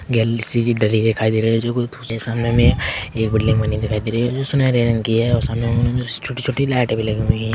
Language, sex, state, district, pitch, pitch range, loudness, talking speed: Hindi, male, Chhattisgarh, Korba, 115 Hz, 110-120 Hz, -18 LUFS, 205 wpm